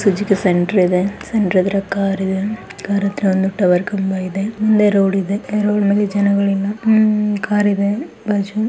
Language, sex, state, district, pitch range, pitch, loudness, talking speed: Kannada, female, Karnataka, Dharwad, 195-210 Hz, 200 Hz, -17 LUFS, 90 wpm